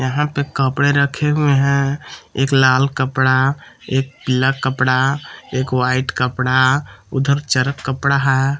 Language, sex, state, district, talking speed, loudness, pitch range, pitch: Hindi, male, Jharkhand, Palamu, 135 wpm, -17 LUFS, 130-140 Hz, 135 Hz